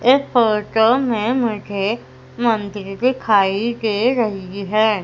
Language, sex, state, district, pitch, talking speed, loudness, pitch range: Hindi, female, Madhya Pradesh, Umaria, 220 Hz, 105 wpm, -18 LUFS, 205-240 Hz